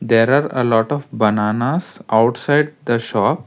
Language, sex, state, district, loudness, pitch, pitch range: English, male, Karnataka, Bangalore, -17 LUFS, 120 Hz, 110-145 Hz